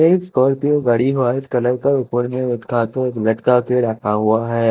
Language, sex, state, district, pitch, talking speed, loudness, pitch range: Hindi, male, Punjab, Kapurthala, 125 Hz, 190 wpm, -17 LUFS, 115-130 Hz